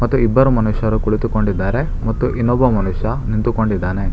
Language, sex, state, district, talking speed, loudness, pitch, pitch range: Kannada, male, Karnataka, Bangalore, 115 wpm, -17 LUFS, 110 Hz, 105-120 Hz